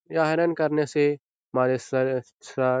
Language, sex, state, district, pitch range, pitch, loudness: Hindi, male, Bihar, Jahanabad, 130-155 Hz, 140 Hz, -25 LUFS